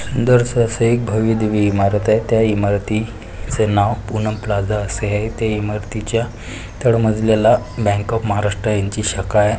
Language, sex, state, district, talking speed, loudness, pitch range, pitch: Marathi, male, Maharashtra, Pune, 155 wpm, -17 LUFS, 105-115 Hz, 110 Hz